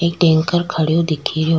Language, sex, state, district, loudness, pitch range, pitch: Rajasthani, female, Rajasthan, Churu, -17 LUFS, 160-170 Hz, 165 Hz